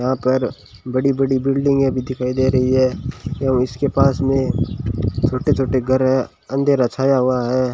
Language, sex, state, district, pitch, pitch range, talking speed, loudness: Hindi, male, Rajasthan, Bikaner, 130 Hz, 125-135 Hz, 170 wpm, -18 LUFS